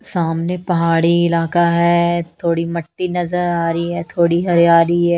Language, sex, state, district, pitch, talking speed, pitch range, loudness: Hindi, female, Haryana, Charkhi Dadri, 170 Hz, 150 wpm, 170-175 Hz, -16 LUFS